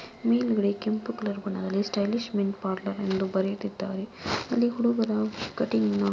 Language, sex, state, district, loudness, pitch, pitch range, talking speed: Kannada, female, Karnataka, Mysore, -28 LUFS, 200 Hz, 195-225 Hz, 120 wpm